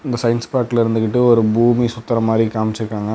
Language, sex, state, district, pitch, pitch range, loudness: Tamil, male, Tamil Nadu, Namakkal, 115 Hz, 110-120 Hz, -17 LUFS